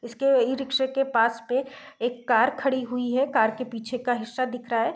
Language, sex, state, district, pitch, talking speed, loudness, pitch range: Hindi, female, Bihar, East Champaran, 250 Hz, 230 wpm, -25 LUFS, 235-265 Hz